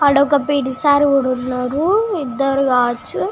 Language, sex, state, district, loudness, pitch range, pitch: Telugu, female, Telangana, Nalgonda, -16 LUFS, 255-290 Hz, 275 Hz